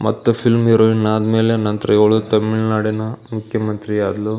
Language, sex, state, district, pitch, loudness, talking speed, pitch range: Kannada, male, Karnataka, Belgaum, 110 Hz, -16 LUFS, 135 wpm, 105-110 Hz